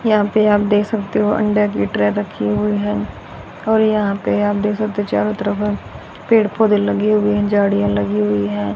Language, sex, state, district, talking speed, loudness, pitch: Hindi, female, Haryana, Rohtak, 205 wpm, -17 LUFS, 205 Hz